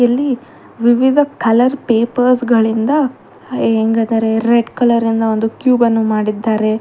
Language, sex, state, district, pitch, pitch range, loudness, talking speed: Kannada, female, Karnataka, Bangalore, 230 Hz, 225-245 Hz, -14 LUFS, 115 wpm